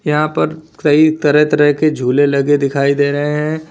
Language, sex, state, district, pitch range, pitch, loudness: Hindi, male, Uttar Pradesh, Lalitpur, 140-155 Hz, 150 Hz, -14 LUFS